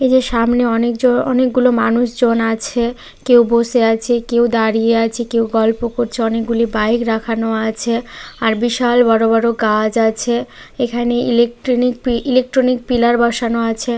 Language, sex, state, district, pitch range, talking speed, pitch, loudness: Bengali, female, West Bengal, Malda, 225-245 Hz, 145 wpm, 235 Hz, -15 LUFS